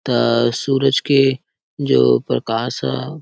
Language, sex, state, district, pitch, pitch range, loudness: Chhattisgarhi, male, Chhattisgarh, Sarguja, 125 Hz, 115-135 Hz, -17 LUFS